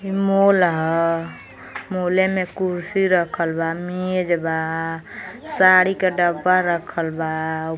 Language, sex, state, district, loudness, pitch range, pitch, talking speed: Bhojpuri, female, Uttar Pradesh, Gorakhpur, -20 LUFS, 165-185 Hz, 175 Hz, 115 wpm